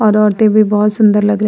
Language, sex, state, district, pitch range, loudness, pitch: Hindi, female, Uttar Pradesh, Muzaffarnagar, 210-215 Hz, -11 LUFS, 210 Hz